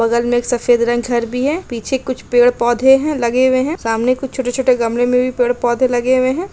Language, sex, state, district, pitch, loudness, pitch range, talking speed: Hindi, female, Chhattisgarh, Sukma, 245 Hz, -15 LUFS, 240-260 Hz, 210 wpm